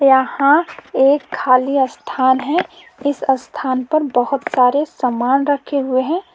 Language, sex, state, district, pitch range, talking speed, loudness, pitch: Hindi, female, Jharkhand, Palamu, 260-295 Hz, 130 wpm, -17 LUFS, 275 Hz